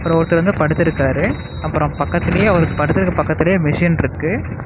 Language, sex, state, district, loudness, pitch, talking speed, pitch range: Tamil, male, Tamil Nadu, Namakkal, -16 LUFS, 165 Hz, 155 wpm, 150-170 Hz